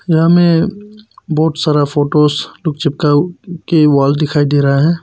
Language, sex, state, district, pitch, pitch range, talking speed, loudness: Hindi, male, Arunachal Pradesh, Papum Pare, 155 Hz, 145-170 Hz, 145 wpm, -13 LUFS